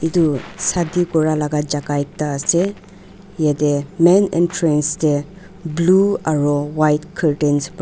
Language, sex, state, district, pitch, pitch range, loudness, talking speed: Nagamese, female, Nagaland, Dimapur, 155 Hz, 150-175 Hz, -18 LUFS, 125 wpm